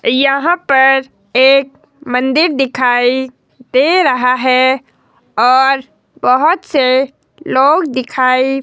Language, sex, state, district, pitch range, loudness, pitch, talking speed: Hindi, female, Himachal Pradesh, Shimla, 255-275 Hz, -12 LUFS, 265 Hz, 90 wpm